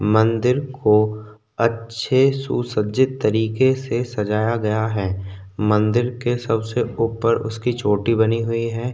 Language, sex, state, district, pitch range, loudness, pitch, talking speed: Hindi, male, Maharashtra, Chandrapur, 105-120 Hz, -20 LUFS, 115 Hz, 120 wpm